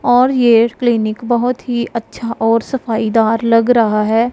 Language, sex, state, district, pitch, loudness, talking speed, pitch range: Hindi, female, Punjab, Pathankot, 230 Hz, -14 LUFS, 165 wpm, 225-245 Hz